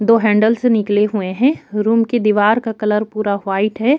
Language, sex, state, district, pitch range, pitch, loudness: Hindi, female, Chhattisgarh, Kabirdham, 210-230 Hz, 215 Hz, -16 LUFS